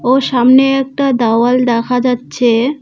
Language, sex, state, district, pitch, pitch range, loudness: Bengali, female, West Bengal, Cooch Behar, 250 Hz, 240-265 Hz, -12 LUFS